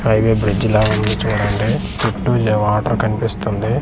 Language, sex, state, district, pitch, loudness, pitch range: Telugu, male, Andhra Pradesh, Manyam, 110 Hz, -17 LUFS, 105-110 Hz